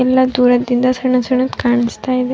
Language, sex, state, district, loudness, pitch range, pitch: Kannada, female, Karnataka, Raichur, -15 LUFS, 245-255 Hz, 255 Hz